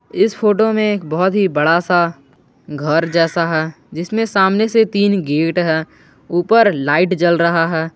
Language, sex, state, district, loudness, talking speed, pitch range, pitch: Hindi, male, Jharkhand, Garhwa, -15 LUFS, 165 wpm, 160-200 Hz, 170 Hz